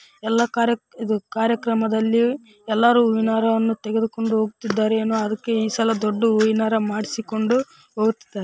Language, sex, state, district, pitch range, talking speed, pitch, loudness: Kannada, female, Karnataka, Raichur, 220-230 Hz, 115 wpm, 225 Hz, -21 LUFS